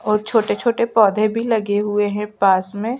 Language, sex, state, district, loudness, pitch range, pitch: Hindi, female, Chhattisgarh, Sukma, -18 LUFS, 205-225 Hz, 210 Hz